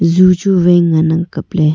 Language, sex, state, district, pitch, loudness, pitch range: Wancho, female, Arunachal Pradesh, Longding, 170 Hz, -12 LUFS, 160-180 Hz